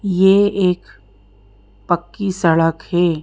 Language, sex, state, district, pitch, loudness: Hindi, female, Madhya Pradesh, Bhopal, 175 Hz, -17 LUFS